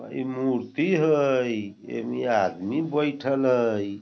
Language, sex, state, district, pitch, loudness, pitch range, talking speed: Bajjika, male, Bihar, Vaishali, 130 Hz, -25 LUFS, 115-135 Hz, 120 wpm